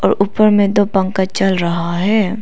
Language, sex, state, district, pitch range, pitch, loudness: Hindi, female, Arunachal Pradesh, Lower Dibang Valley, 190-205 Hz, 195 Hz, -15 LUFS